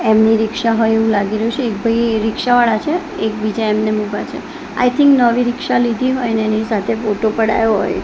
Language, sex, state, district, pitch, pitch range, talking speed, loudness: Gujarati, female, Gujarat, Gandhinagar, 225 Hz, 215-245 Hz, 210 wpm, -16 LUFS